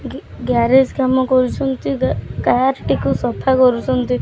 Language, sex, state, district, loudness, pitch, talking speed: Odia, female, Odisha, Khordha, -16 LUFS, 250 Hz, 130 wpm